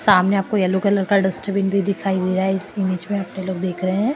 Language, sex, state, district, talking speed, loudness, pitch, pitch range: Hindi, female, Maharashtra, Chandrapur, 200 wpm, -20 LUFS, 195 Hz, 185-200 Hz